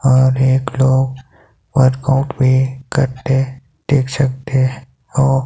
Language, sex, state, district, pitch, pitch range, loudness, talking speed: Hindi, male, Himachal Pradesh, Shimla, 130 Hz, 130-135 Hz, -16 LUFS, 100 wpm